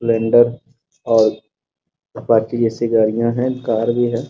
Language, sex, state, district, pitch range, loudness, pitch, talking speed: Hindi, male, Bihar, Muzaffarpur, 115-120 Hz, -17 LUFS, 115 Hz, 125 wpm